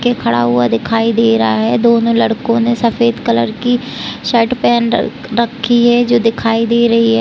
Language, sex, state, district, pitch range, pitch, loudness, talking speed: Hindi, female, Chhattisgarh, Raigarh, 225-240 Hz, 230 Hz, -13 LUFS, 190 wpm